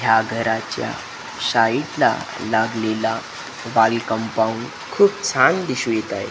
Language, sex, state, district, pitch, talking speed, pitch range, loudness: Marathi, male, Maharashtra, Gondia, 115 Hz, 115 wpm, 110-115 Hz, -20 LUFS